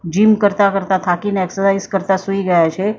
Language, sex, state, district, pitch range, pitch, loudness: Gujarati, female, Maharashtra, Mumbai Suburban, 185-200 Hz, 195 Hz, -16 LUFS